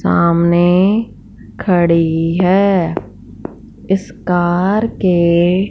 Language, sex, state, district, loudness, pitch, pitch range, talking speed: Hindi, female, Punjab, Fazilka, -14 LUFS, 180 Hz, 170-195 Hz, 65 wpm